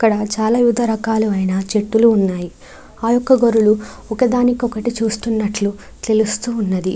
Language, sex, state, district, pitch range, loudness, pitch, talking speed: Telugu, female, Andhra Pradesh, Chittoor, 210-235 Hz, -17 LUFS, 220 Hz, 105 wpm